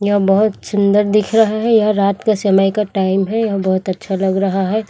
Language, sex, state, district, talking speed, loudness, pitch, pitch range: Hindi, female, Chhattisgarh, Raipur, 230 wpm, -15 LUFS, 200 Hz, 195-215 Hz